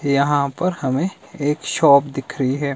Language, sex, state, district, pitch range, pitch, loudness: Hindi, male, Himachal Pradesh, Shimla, 135-145 Hz, 140 Hz, -19 LUFS